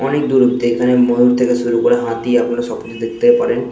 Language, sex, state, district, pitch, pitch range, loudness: Bengali, male, West Bengal, Jalpaiguri, 120 Hz, 120-125 Hz, -15 LUFS